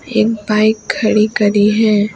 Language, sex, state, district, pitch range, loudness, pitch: Hindi, female, West Bengal, Alipurduar, 210-220 Hz, -14 LUFS, 215 Hz